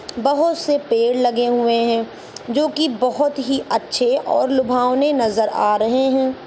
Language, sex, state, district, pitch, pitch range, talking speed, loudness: Hindi, female, Uttar Pradesh, Ghazipur, 255 Hz, 235-290 Hz, 155 wpm, -18 LUFS